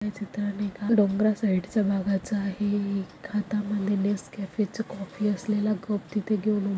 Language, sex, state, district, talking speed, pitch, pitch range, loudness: Marathi, female, Maharashtra, Sindhudurg, 140 wpm, 205 Hz, 200-210 Hz, -27 LUFS